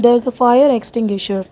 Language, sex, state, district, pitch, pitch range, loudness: English, female, Karnataka, Bangalore, 240 Hz, 210-245 Hz, -15 LUFS